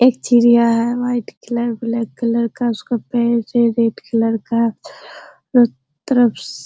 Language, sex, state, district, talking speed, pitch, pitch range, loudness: Hindi, female, Bihar, Araria, 160 wpm, 235 Hz, 230-240 Hz, -17 LUFS